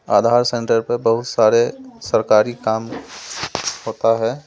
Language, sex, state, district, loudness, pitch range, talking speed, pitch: Hindi, male, Delhi, New Delhi, -18 LUFS, 115-120 Hz, 120 wpm, 115 Hz